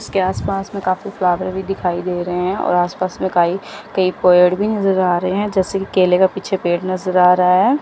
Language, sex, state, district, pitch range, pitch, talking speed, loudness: Hindi, female, Chandigarh, Chandigarh, 180-195 Hz, 185 Hz, 230 wpm, -17 LUFS